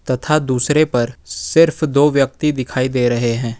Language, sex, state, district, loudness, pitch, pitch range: Hindi, male, Jharkhand, Ranchi, -16 LUFS, 130 Hz, 125-150 Hz